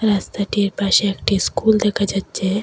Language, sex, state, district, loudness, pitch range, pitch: Bengali, female, Assam, Hailakandi, -18 LUFS, 195-210 Hz, 200 Hz